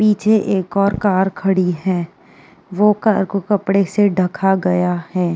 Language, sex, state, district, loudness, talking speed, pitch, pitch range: Hindi, female, Uttar Pradesh, Jyotiba Phule Nagar, -17 LUFS, 155 wpm, 195 Hz, 180-205 Hz